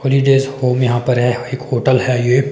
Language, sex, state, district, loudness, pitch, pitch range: Hindi, male, Himachal Pradesh, Shimla, -15 LUFS, 125 Hz, 125-135 Hz